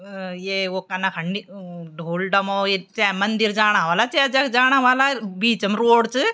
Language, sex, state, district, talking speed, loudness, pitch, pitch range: Garhwali, female, Uttarakhand, Tehri Garhwal, 180 wpm, -19 LUFS, 200 Hz, 190-235 Hz